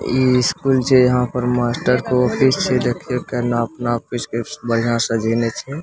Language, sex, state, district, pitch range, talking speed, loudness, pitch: Maithili, male, Bihar, Samastipur, 120-125 Hz, 185 wpm, -18 LUFS, 125 Hz